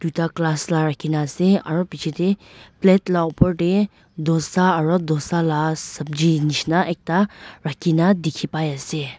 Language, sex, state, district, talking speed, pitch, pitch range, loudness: Nagamese, female, Nagaland, Dimapur, 135 wpm, 165 Hz, 155-180 Hz, -20 LUFS